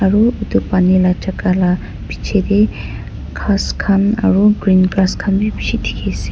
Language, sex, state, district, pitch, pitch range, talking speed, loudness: Nagamese, female, Nagaland, Dimapur, 195 Hz, 185-210 Hz, 160 wpm, -15 LUFS